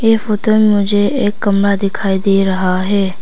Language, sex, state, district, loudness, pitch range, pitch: Hindi, female, Arunachal Pradesh, Papum Pare, -14 LUFS, 195-210 Hz, 200 Hz